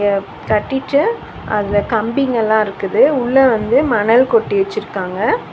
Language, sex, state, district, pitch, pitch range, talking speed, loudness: Tamil, female, Tamil Nadu, Chennai, 215 Hz, 200-250 Hz, 110 wpm, -15 LUFS